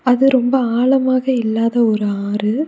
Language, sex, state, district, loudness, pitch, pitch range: Tamil, female, Tamil Nadu, Nilgiris, -16 LUFS, 245 Hz, 220-260 Hz